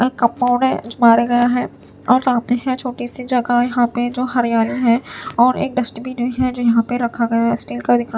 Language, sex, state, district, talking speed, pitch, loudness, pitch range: Hindi, female, Chhattisgarh, Raipur, 190 wpm, 245 Hz, -17 LUFS, 235-250 Hz